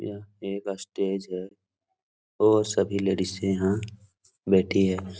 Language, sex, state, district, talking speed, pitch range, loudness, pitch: Hindi, male, Bihar, Supaul, 115 wpm, 95-100 Hz, -26 LUFS, 95 Hz